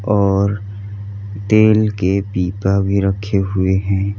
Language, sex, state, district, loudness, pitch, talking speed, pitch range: Hindi, male, Uttar Pradesh, Lalitpur, -16 LUFS, 100 Hz, 115 wpm, 95-100 Hz